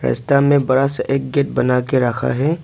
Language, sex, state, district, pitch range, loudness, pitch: Hindi, male, Arunachal Pradesh, Papum Pare, 125-140 Hz, -17 LUFS, 135 Hz